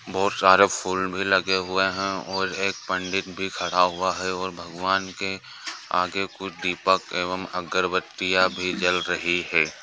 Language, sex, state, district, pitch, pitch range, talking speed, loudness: Hindi, male, Andhra Pradesh, Srikakulam, 95 Hz, 90-95 Hz, 175 wpm, -24 LUFS